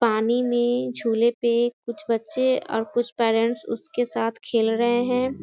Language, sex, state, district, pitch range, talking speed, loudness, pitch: Hindi, female, Bihar, Sitamarhi, 230-245 Hz, 155 wpm, -23 LUFS, 235 Hz